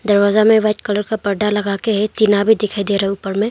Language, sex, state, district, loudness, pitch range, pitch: Hindi, female, Arunachal Pradesh, Longding, -16 LUFS, 200-215 Hz, 210 Hz